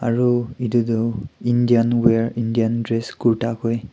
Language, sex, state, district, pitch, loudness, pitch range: Nagamese, male, Nagaland, Kohima, 115 Hz, -20 LUFS, 115-120 Hz